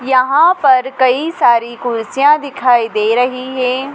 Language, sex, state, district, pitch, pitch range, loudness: Hindi, female, Madhya Pradesh, Dhar, 255 Hz, 240-275 Hz, -13 LUFS